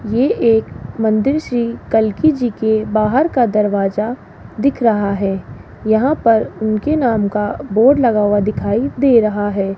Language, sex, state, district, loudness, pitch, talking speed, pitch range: Hindi, female, Rajasthan, Jaipur, -16 LUFS, 220 Hz, 155 wpm, 210-245 Hz